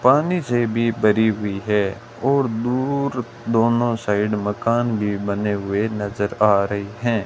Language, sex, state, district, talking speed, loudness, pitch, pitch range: Hindi, male, Rajasthan, Bikaner, 150 wpm, -21 LUFS, 110 Hz, 105-120 Hz